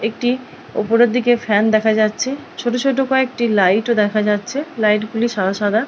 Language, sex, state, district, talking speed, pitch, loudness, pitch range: Bengali, female, West Bengal, Purulia, 175 wpm, 225 Hz, -17 LUFS, 215-245 Hz